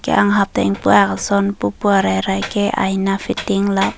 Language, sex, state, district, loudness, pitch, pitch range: Karbi, female, Assam, Karbi Anglong, -17 LUFS, 195 Hz, 195-200 Hz